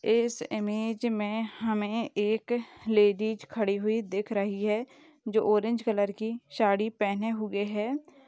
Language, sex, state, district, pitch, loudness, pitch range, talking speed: Hindi, female, Maharashtra, Solapur, 220 Hz, -29 LUFS, 210-230 Hz, 140 wpm